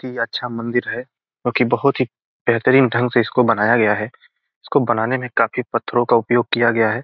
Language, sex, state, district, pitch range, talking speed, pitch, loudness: Hindi, male, Bihar, Gopalganj, 115-125 Hz, 215 wpm, 120 Hz, -18 LUFS